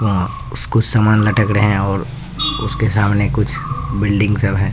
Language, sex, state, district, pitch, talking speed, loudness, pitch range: Hindi, male, Bihar, Katihar, 110 Hz, 165 wpm, -16 LUFS, 105-115 Hz